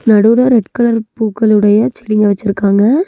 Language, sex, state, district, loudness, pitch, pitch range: Tamil, female, Tamil Nadu, Nilgiris, -12 LUFS, 220 Hz, 205-230 Hz